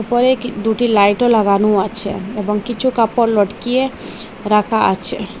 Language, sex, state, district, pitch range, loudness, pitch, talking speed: Bengali, female, Assam, Hailakandi, 210-240 Hz, -16 LUFS, 220 Hz, 135 wpm